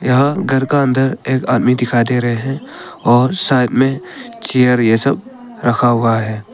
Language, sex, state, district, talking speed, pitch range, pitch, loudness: Hindi, male, Arunachal Pradesh, Papum Pare, 175 wpm, 120-140 Hz, 130 Hz, -14 LUFS